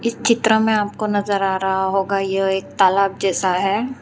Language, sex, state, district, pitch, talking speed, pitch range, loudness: Hindi, female, Gujarat, Valsad, 195 Hz, 180 wpm, 195-215 Hz, -18 LUFS